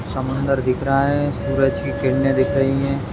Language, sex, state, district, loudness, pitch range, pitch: Hindi, male, Maharashtra, Dhule, -19 LUFS, 135-140 Hz, 135 Hz